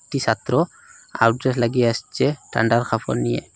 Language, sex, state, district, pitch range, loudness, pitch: Bengali, male, Assam, Hailakandi, 115-130 Hz, -21 LUFS, 115 Hz